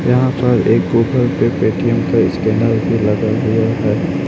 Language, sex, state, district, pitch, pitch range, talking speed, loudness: Hindi, male, Chhattisgarh, Raipur, 110 Hz, 105-125 Hz, 170 wpm, -15 LUFS